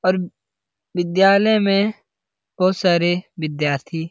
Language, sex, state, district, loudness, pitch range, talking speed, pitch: Hindi, male, Bihar, Lakhisarai, -19 LUFS, 155-195 Hz, 100 wpm, 175 Hz